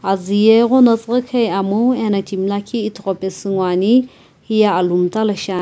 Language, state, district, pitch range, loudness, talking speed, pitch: Sumi, Nagaland, Kohima, 195-230 Hz, -16 LUFS, 170 wpm, 205 Hz